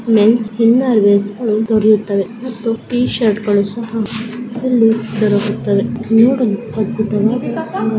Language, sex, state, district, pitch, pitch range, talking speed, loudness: Kannada, female, Karnataka, Chamarajanagar, 220 Hz, 210-230 Hz, 90 wpm, -15 LUFS